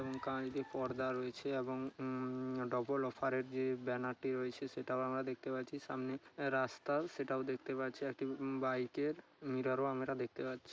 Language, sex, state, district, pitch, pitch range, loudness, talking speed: Bengali, male, West Bengal, Paschim Medinipur, 130 Hz, 130-135 Hz, -40 LUFS, 155 wpm